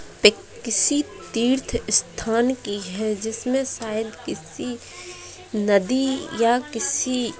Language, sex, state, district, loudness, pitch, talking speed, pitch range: Hindi, female, Bihar, Saharsa, -22 LUFS, 230 Hz, 105 wpm, 205-255 Hz